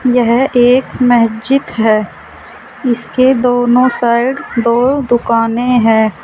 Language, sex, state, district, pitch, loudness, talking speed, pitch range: Hindi, female, Uttar Pradesh, Saharanpur, 245 Hz, -12 LUFS, 95 wpm, 230-255 Hz